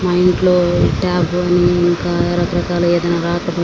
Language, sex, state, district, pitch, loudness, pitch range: Telugu, female, Andhra Pradesh, Srikakulam, 175 Hz, -15 LUFS, 175-180 Hz